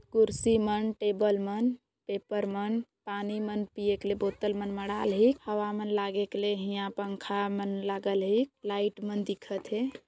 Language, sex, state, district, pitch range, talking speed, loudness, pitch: Sadri, female, Chhattisgarh, Jashpur, 200-210 Hz, 165 wpm, -31 LUFS, 205 Hz